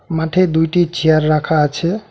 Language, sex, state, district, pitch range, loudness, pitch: Bengali, male, West Bengal, Alipurduar, 155-175 Hz, -15 LUFS, 160 Hz